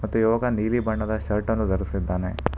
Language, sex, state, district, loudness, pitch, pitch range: Kannada, male, Karnataka, Bangalore, -24 LUFS, 110 Hz, 95-110 Hz